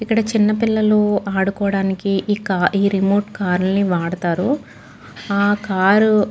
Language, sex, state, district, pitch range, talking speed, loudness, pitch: Telugu, female, Andhra Pradesh, Guntur, 190-210 Hz, 125 wpm, -18 LUFS, 200 Hz